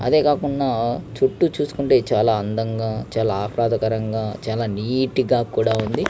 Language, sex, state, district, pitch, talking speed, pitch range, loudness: Telugu, male, Andhra Pradesh, Krishna, 115 Hz, 140 wpm, 110-130 Hz, -21 LUFS